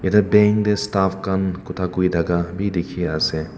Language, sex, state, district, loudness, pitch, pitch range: Nagamese, male, Nagaland, Kohima, -20 LUFS, 95 Hz, 85-100 Hz